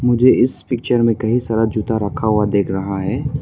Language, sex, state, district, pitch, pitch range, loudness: Hindi, male, Arunachal Pradesh, Papum Pare, 110 Hz, 105-125 Hz, -17 LUFS